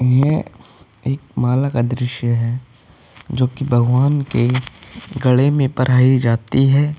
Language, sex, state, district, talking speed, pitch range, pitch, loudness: Hindi, male, Uttar Pradesh, Hamirpur, 130 wpm, 120-135 Hz, 125 Hz, -17 LUFS